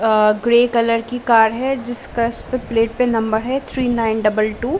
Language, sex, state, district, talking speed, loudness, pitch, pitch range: Hindi, female, Bihar, Saran, 215 wpm, -17 LUFS, 230 Hz, 225-245 Hz